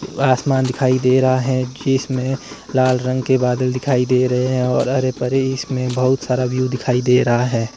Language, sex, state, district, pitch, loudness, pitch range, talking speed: Hindi, male, Himachal Pradesh, Shimla, 130 Hz, -18 LUFS, 125-130 Hz, 195 wpm